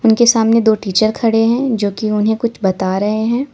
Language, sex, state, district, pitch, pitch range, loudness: Hindi, female, Uttar Pradesh, Lalitpur, 220 Hz, 210-230 Hz, -14 LUFS